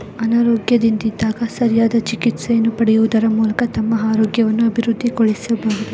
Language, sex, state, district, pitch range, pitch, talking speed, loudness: Kannada, female, Karnataka, Dakshina Kannada, 220-235 Hz, 225 Hz, 90 wpm, -17 LUFS